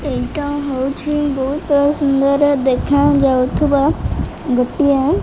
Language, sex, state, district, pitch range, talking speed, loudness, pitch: Odia, female, Odisha, Malkangiri, 270-290 Hz, 90 wpm, -16 LUFS, 280 Hz